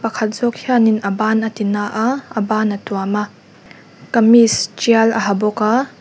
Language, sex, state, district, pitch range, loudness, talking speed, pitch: Mizo, female, Mizoram, Aizawl, 210-230 Hz, -16 LUFS, 200 wpm, 220 Hz